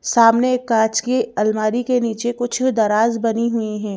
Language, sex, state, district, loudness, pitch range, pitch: Hindi, female, Madhya Pradesh, Bhopal, -18 LUFS, 220-245 Hz, 230 Hz